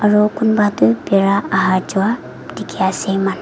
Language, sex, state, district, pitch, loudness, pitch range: Nagamese, female, Nagaland, Dimapur, 195 Hz, -16 LUFS, 190-210 Hz